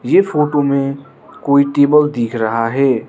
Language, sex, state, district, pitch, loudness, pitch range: Hindi, male, Arunachal Pradesh, Lower Dibang Valley, 140 Hz, -14 LUFS, 125-145 Hz